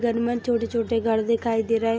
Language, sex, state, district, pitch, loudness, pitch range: Hindi, female, Jharkhand, Sahebganj, 230 Hz, -24 LUFS, 225-235 Hz